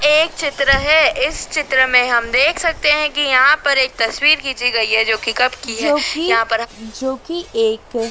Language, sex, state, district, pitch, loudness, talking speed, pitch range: Hindi, female, Madhya Pradesh, Dhar, 275 Hz, -15 LUFS, 205 wpm, 240-305 Hz